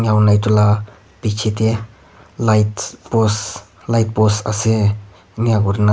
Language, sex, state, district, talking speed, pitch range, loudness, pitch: Nagamese, male, Nagaland, Kohima, 130 wpm, 105-110 Hz, -17 LUFS, 105 Hz